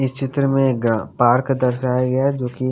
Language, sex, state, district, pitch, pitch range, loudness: Hindi, female, Haryana, Charkhi Dadri, 130 Hz, 125-135 Hz, -19 LUFS